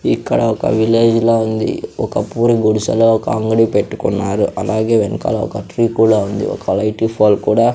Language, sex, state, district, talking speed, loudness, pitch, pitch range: Telugu, female, Andhra Pradesh, Sri Satya Sai, 160 wpm, -15 LUFS, 110 Hz, 110-115 Hz